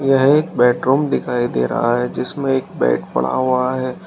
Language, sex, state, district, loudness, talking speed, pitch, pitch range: Hindi, male, Uttar Pradesh, Shamli, -17 LUFS, 190 wpm, 130 Hz, 120-135 Hz